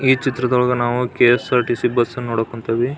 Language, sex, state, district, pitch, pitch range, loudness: Kannada, male, Karnataka, Belgaum, 125 Hz, 120-125 Hz, -18 LUFS